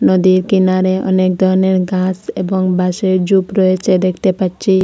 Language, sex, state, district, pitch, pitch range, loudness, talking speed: Bengali, female, Assam, Hailakandi, 185 Hz, 185-190 Hz, -14 LUFS, 135 wpm